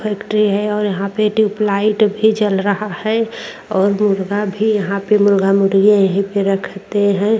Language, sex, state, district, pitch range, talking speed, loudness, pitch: Hindi, female, Uttar Pradesh, Jyotiba Phule Nagar, 200-215 Hz, 160 wpm, -16 LUFS, 205 Hz